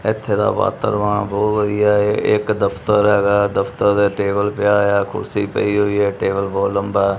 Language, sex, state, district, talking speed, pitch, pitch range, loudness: Punjabi, male, Punjab, Kapurthala, 190 wpm, 100 Hz, 100-105 Hz, -17 LUFS